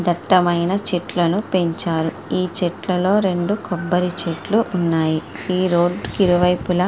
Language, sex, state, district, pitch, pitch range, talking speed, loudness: Telugu, female, Andhra Pradesh, Srikakulam, 180 Hz, 170-185 Hz, 105 wpm, -19 LUFS